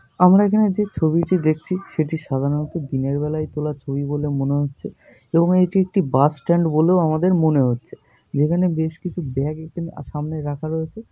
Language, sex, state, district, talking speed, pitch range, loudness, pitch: Bengali, male, West Bengal, North 24 Parganas, 165 wpm, 145-175 Hz, -20 LUFS, 155 Hz